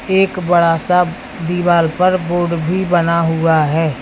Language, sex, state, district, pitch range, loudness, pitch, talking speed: Hindi, female, Uttar Pradesh, Lalitpur, 165-180 Hz, -15 LUFS, 175 Hz, 150 wpm